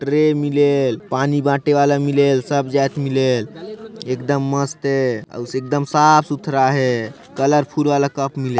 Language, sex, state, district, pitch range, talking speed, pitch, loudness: Chhattisgarhi, male, Chhattisgarh, Sarguja, 135-145 Hz, 175 wpm, 140 Hz, -18 LUFS